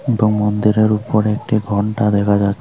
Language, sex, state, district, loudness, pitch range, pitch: Bengali, female, Tripura, Unakoti, -16 LUFS, 105-110 Hz, 105 Hz